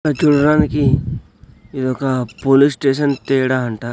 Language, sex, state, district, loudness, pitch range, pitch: Telugu, male, Andhra Pradesh, Sri Satya Sai, -16 LUFS, 130-145 Hz, 135 Hz